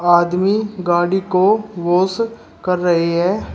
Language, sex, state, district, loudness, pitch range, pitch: Hindi, male, Uttar Pradesh, Shamli, -17 LUFS, 175-200 Hz, 180 Hz